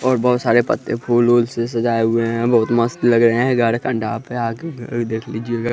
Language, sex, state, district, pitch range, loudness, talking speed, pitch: Hindi, male, Bihar, West Champaran, 115-120 Hz, -18 LUFS, 230 wpm, 120 Hz